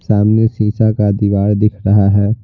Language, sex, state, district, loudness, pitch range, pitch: Hindi, male, Bihar, Patna, -13 LUFS, 100-110 Hz, 105 Hz